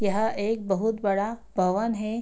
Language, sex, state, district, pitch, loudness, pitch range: Hindi, female, Bihar, Darbhanga, 215 Hz, -26 LUFS, 200-225 Hz